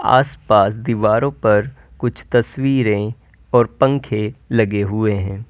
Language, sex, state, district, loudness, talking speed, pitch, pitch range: Hindi, female, Uttar Pradesh, Lalitpur, -17 LUFS, 120 wpm, 115 Hz, 105-130 Hz